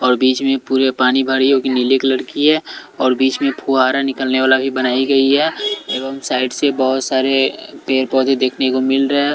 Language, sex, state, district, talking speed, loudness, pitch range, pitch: Hindi, male, Delhi, New Delhi, 210 wpm, -16 LUFS, 130-135 Hz, 135 Hz